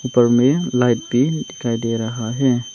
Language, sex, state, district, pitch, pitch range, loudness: Hindi, male, Arunachal Pradesh, Longding, 120 Hz, 115-130 Hz, -18 LUFS